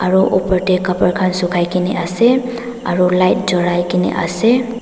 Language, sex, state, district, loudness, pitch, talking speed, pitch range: Nagamese, female, Nagaland, Dimapur, -15 LUFS, 185 Hz, 160 wpm, 180-205 Hz